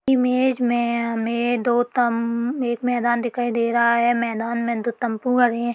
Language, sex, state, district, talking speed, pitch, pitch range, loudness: Hindi, female, Uttarakhand, Uttarkashi, 180 wpm, 240 Hz, 235-245 Hz, -21 LUFS